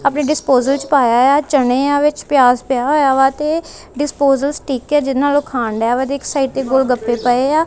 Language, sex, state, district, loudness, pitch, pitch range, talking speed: Punjabi, female, Punjab, Kapurthala, -15 LUFS, 275 Hz, 255-290 Hz, 210 wpm